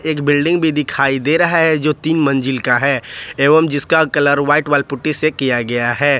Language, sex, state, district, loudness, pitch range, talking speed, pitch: Hindi, male, Jharkhand, Ranchi, -15 LUFS, 140-155 Hz, 215 wpm, 145 Hz